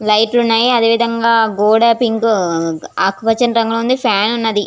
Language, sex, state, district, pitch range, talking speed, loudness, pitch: Telugu, female, Andhra Pradesh, Visakhapatnam, 210-235 Hz, 165 wpm, -14 LUFS, 225 Hz